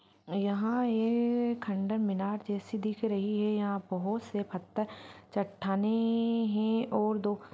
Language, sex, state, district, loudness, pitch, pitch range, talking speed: Hindi, female, Uttar Pradesh, Deoria, -32 LUFS, 210 Hz, 200-225 Hz, 135 wpm